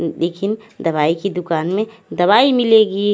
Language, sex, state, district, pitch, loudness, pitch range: Hindi, female, Haryana, Charkhi Dadri, 200 Hz, -17 LUFS, 170-220 Hz